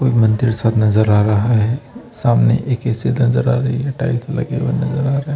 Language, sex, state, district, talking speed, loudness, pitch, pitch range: Hindi, male, Chhattisgarh, Bilaspur, 225 wpm, -16 LUFS, 120 Hz, 110-135 Hz